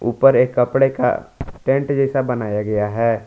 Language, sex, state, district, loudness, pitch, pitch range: Hindi, male, Jharkhand, Palamu, -18 LUFS, 125 Hz, 115-135 Hz